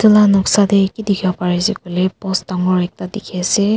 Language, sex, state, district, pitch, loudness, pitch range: Nagamese, female, Nagaland, Kohima, 190 Hz, -16 LUFS, 180-205 Hz